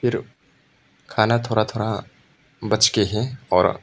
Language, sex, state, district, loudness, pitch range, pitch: Hindi, male, Arunachal Pradesh, Papum Pare, -21 LUFS, 110-125 Hz, 115 Hz